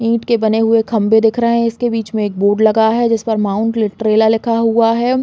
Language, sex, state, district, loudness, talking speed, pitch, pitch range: Hindi, female, Uttar Pradesh, Muzaffarnagar, -14 LUFS, 250 wpm, 225 Hz, 220-230 Hz